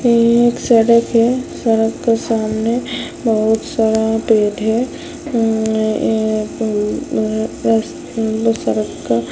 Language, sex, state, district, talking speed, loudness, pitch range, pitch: Hindi, female, Chhattisgarh, Sukma, 120 wpm, -16 LUFS, 215-230 Hz, 225 Hz